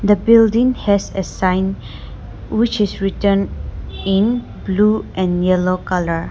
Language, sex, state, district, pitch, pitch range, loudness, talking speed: English, female, Nagaland, Dimapur, 195 Hz, 185-215 Hz, -17 LUFS, 125 wpm